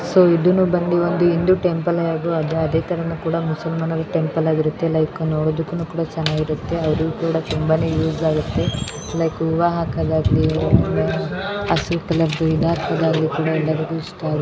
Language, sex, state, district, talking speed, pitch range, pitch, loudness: Kannada, female, Karnataka, Bellary, 130 wpm, 160-170 Hz, 160 Hz, -20 LUFS